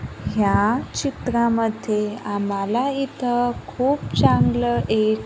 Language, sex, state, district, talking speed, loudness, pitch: Marathi, female, Maharashtra, Gondia, 80 wpm, -21 LUFS, 215 Hz